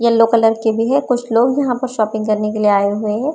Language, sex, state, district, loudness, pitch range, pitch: Hindi, female, Maharashtra, Chandrapur, -16 LUFS, 215-245 Hz, 230 Hz